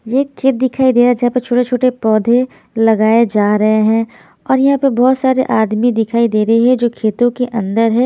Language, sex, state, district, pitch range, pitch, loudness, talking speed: Hindi, female, Haryana, Jhajjar, 225-255 Hz, 240 Hz, -13 LUFS, 225 wpm